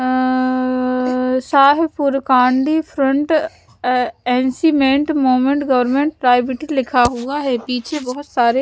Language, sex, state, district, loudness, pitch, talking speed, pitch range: Hindi, female, Punjab, Pathankot, -16 LUFS, 260 Hz, 90 wpm, 255-285 Hz